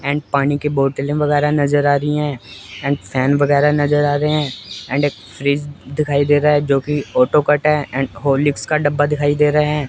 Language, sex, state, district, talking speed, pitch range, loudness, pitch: Hindi, male, Chandigarh, Chandigarh, 205 wpm, 140-150 Hz, -17 LUFS, 145 Hz